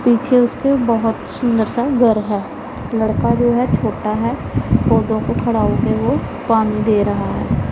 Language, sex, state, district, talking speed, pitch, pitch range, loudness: Hindi, female, Punjab, Pathankot, 170 wpm, 230 Hz, 220-245 Hz, -17 LUFS